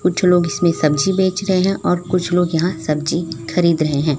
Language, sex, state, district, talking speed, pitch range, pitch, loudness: Hindi, female, Chhattisgarh, Raipur, 215 wpm, 160-180 Hz, 175 Hz, -17 LUFS